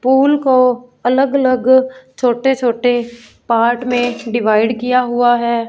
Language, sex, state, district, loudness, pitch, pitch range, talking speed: Hindi, female, Punjab, Fazilka, -14 LUFS, 245 Hz, 235-260 Hz, 125 wpm